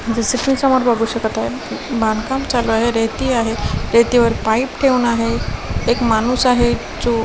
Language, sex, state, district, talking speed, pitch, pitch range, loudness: Marathi, female, Maharashtra, Washim, 165 wpm, 235 Hz, 225-250 Hz, -17 LUFS